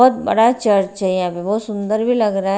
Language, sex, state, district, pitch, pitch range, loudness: Hindi, female, Haryana, Rohtak, 210 Hz, 195-225 Hz, -17 LUFS